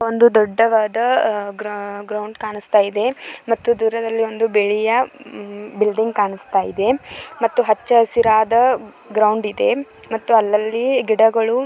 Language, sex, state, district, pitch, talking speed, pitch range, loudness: Kannada, female, Karnataka, Belgaum, 220 Hz, 95 wpm, 210-230 Hz, -18 LUFS